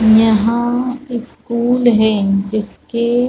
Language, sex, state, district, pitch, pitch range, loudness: Hindi, female, Chhattisgarh, Balrampur, 235 Hz, 220-240 Hz, -15 LUFS